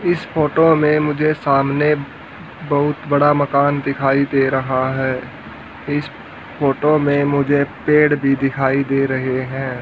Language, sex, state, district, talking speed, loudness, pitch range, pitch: Hindi, male, Haryana, Rohtak, 135 wpm, -17 LUFS, 135-150 Hz, 140 Hz